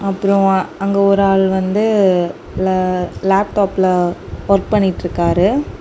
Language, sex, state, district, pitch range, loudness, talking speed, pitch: Tamil, female, Tamil Nadu, Kanyakumari, 185-200 Hz, -15 LUFS, 85 wpm, 195 Hz